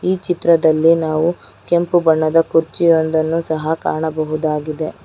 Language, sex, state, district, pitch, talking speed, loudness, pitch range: Kannada, female, Karnataka, Bangalore, 160 Hz, 95 wpm, -16 LUFS, 155-170 Hz